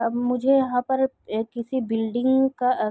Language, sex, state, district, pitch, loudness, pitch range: Hindi, female, Chhattisgarh, Raigarh, 250 Hz, -23 LUFS, 230-265 Hz